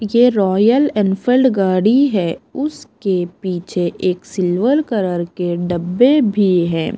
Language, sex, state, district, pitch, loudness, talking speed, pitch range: Hindi, female, Punjab, Pathankot, 195 Hz, -16 LUFS, 120 wpm, 180-245 Hz